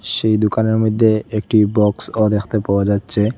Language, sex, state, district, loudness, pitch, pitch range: Bengali, male, Assam, Hailakandi, -16 LUFS, 110 Hz, 105-110 Hz